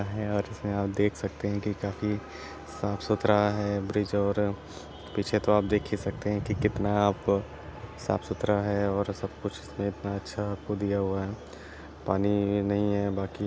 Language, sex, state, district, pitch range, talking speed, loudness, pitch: Hindi, male, Maharashtra, Sindhudurg, 100-105 Hz, 170 wpm, -29 LUFS, 100 Hz